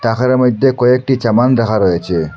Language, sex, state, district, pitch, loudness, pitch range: Bengali, male, Assam, Hailakandi, 120 Hz, -13 LUFS, 110-130 Hz